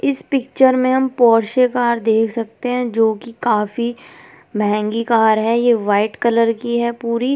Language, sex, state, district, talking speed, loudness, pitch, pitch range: Hindi, female, Delhi, New Delhi, 170 wpm, -17 LUFS, 235 Hz, 225-250 Hz